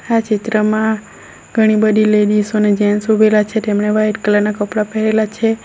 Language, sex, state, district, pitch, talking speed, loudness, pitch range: Gujarati, female, Gujarat, Valsad, 215 Hz, 170 wpm, -15 LUFS, 210-220 Hz